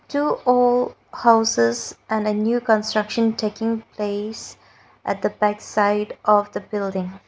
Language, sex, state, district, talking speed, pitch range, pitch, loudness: English, female, Nagaland, Dimapur, 130 wpm, 205-225 Hz, 215 Hz, -21 LUFS